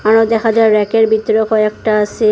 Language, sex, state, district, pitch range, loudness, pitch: Bengali, female, Assam, Hailakandi, 215-225 Hz, -13 LUFS, 220 Hz